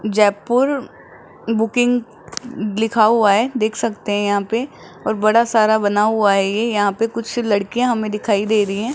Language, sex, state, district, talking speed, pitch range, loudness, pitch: Hindi, male, Rajasthan, Jaipur, 175 wpm, 205-230 Hz, -18 LUFS, 220 Hz